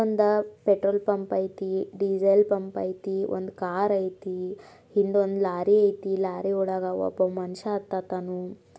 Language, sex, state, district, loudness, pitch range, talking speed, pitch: Kannada, female, Karnataka, Belgaum, -26 LUFS, 185-200 Hz, 130 wpm, 195 Hz